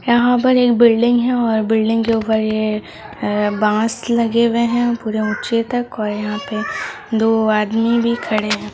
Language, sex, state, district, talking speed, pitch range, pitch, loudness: Hindi, female, Jharkhand, Jamtara, 170 wpm, 215-235 Hz, 225 Hz, -17 LUFS